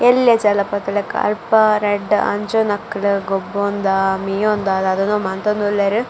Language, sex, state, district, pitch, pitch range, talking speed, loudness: Tulu, female, Karnataka, Dakshina Kannada, 205 Hz, 195-210 Hz, 110 wpm, -17 LUFS